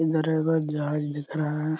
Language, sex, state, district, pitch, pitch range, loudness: Hindi, male, Jharkhand, Sahebganj, 155 Hz, 150-160 Hz, -27 LUFS